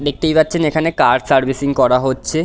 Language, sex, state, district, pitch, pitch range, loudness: Bengali, male, West Bengal, Dakshin Dinajpur, 150 Hz, 135-160 Hz, -15 LUFS